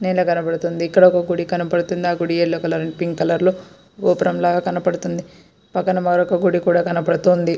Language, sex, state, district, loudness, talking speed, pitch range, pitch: Telugu, female, Andhra Pradesh, Srikakulam, -18 LUFS, 180 wpm, 170-180 Hz, 175 Hz